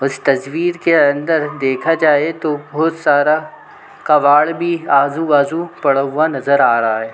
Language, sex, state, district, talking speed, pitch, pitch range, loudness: Hindi, male, Chhattisgarh, Bilaspur, 160 wpm, 150 Hz, 140-165 Hz, -15 LUFS